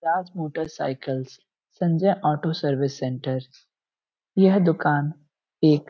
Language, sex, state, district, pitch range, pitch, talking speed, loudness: Hindi, male, Uttar Pradesh, Gorakhpur, 135-165 Hz, 150 Hz, 100 wpm, -24 LUFS